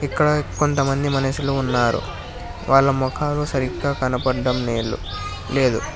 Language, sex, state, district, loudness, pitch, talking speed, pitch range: Telugu, male, Telangana, Hyderabad, -21 LUFS, 130 Hz, 100 wpm, 115-140 Hz